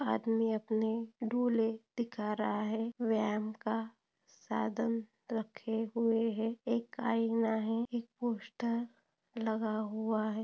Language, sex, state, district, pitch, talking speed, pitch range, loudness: Hindi, female, Maharashtra, Solapur, 225 Hz, 115 wpm, 220-230 Hz, -35 LUFS